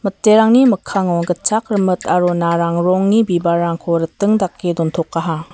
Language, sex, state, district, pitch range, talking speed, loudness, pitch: Garo, female, Meghalaya, West Garo Hills, 170-205 Hz, 110 wpm, -15 LUFS, 175 Hz